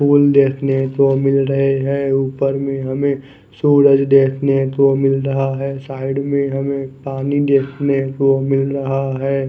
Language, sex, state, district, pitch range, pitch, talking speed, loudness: Hindi, male, Odisha, Khordha, 135-140 Hz, 135 Hz, 150 wpm, -16 LUFS